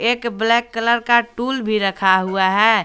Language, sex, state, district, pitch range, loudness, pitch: Hindi, male, Jharkhand, Garhwa, 195-235 Hz, -17 LUFS, 225 Hz